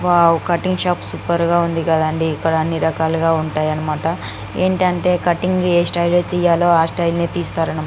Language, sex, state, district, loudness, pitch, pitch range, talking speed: Telugu, female, Andhra Pradesh, Guntur, -17 LUFS, 170 Hz, 160-175 Hz, 190 wpm